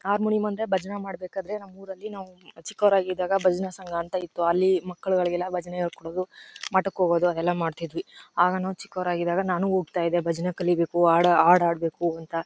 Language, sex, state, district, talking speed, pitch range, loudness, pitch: Kannada, female, Karnataka, Chamarajanagar, 165 wpm, 175-190 Hz, -25 LUFS, 180 Hz